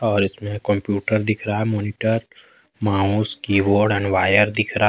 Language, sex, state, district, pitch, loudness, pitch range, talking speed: Hindi, male, Jharkhand, Deoghar, 105 Hz, -20 LUFS, 100-110 Hz, 160 wpm